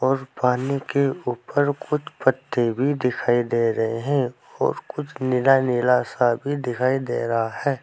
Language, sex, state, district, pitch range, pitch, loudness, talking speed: Hindi, male, Uttar Pradesh, Saharanpur, 120-140 Hz, 130 Hz, -22 LUFS, 160 wpm